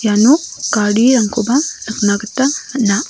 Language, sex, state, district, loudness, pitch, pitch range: Garo, female, Meghalaya, South Garo Hills, -14 LUFS, 230 Hz, 210-270 Hz